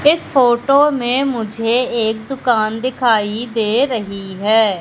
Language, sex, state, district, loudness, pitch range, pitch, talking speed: Hindi, female, Madhya Pradesh, Katni, -16 LUFS, 220-260 Hz, 235 Hz, 125 wpm